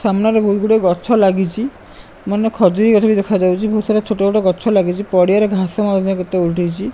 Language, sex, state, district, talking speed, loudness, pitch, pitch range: Odia, male, Odisha, Malkangiri, 180 wpm, -15 LUFS, 200 Hz, 185-215 Hz